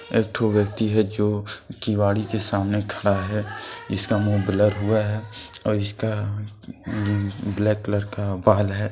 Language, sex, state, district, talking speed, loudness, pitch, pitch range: Hindi, male, Jharkhand, Deoghar, 150 wpm, -23 LUFS, 105 Hz, 100-105 Hz